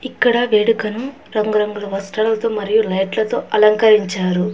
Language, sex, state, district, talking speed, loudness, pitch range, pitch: Telugu, female, Telangana, Hyderabad, 90 wpm, -17 LUFS, 205-225 Hz, 215 Hz